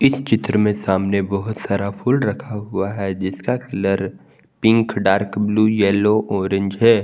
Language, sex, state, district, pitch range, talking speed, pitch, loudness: Hindi, male, Jharkhand, Garhwa, 95-110 Hz, 155 wpm, 100 Hz, -19 LUFS